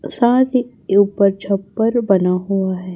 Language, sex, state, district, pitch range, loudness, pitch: Hindi, male, Chhattisgarh, Raipur, 190-235 Hz, -17 LUFS, 200 Hz